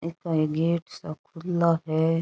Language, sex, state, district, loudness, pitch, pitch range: Rajasthani, female, Rajasthan, Churu, -26 LUFS, 165 Hz, 160-170 Hz